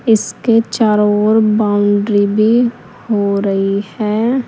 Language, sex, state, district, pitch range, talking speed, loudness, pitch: Hindi, female, Uttar Pradesh, Saharanpur, 205-225 Hz, 105 wpm, -14 LUFS, 210 Hz